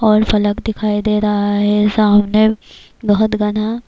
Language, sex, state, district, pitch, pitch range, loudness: Urdu, female, Bihar, Kishanganj, 210 Hz, 210-215 Hz, -15 LUFS